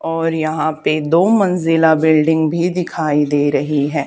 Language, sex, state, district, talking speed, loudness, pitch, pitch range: Hindi, female, Haryana, Charkhi Dadri, 160 wpm, -15 LUFS, 160 Hz, 150-165 Hz